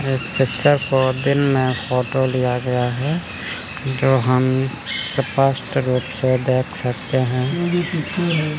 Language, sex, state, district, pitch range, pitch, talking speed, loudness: Hindi, male, Chandigarh, Chandigarh, 130-140 Hz, 130 Hz, 105 wpm, -20 LUFS